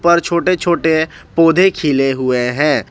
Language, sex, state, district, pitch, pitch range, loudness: Hindi, male, Jharkhand, Ranchi, 165 Hz, 140-170 Hz, -14 LUFS